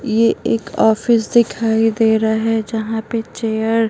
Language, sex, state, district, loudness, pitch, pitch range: Hindi, female, Bihar, Patna, -17 LUFS, 225 Hz, 220-230 Hz